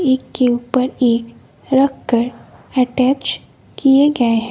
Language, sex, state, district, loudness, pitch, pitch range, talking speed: Hindi, female, Bihar, West Champaran, -16 LUFS, 255 Hz, 240-270 Hz, 105 wpm